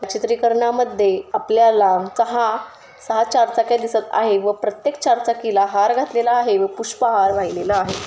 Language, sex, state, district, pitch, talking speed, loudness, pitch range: Marathi, female, Maharashtra, Solapur, 225 Hz, 140 wpm, -18 LUFS, 200-235 Hz